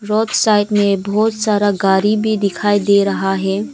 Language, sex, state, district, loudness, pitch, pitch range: Hindi, female, Arunachal Pradesh, Lower Dibang Valley, -15 LUFS, 205 Hz, 195-215 Hz